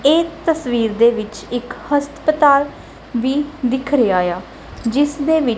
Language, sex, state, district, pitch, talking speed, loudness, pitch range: Punjabi, female, Punjab, Kapurthala, 270 Hz, 140 wpm, -18 LUFS, 235-290 Hz